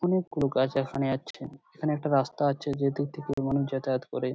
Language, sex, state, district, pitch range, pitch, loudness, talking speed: Bengali, male, West Bengal, Purulia, 135-150 Hz, 140 Hz, -29 LUFS, 220 wpm